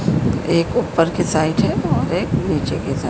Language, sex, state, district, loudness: Hindi, female, Madhya Pradesh, Dhar, -18 LUFS